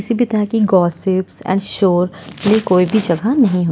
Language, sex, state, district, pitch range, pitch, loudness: Hindi, female, Uttar Pradesh, Jyotiba Phule Nagar, 180-215 Hz, 195 Hz, -15 LUFS